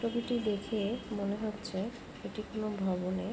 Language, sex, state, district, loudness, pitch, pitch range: Bengali, female, West Bengal, Jhargram, -36 LUFS, 215 Hz, 200-225 Hz